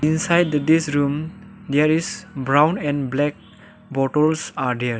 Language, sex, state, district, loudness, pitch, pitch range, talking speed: English, male, Arunachal Pradesh, Lower Dibang Valley, -20 LUFS, 150 Hz, 140-170 Hz, 130 wpm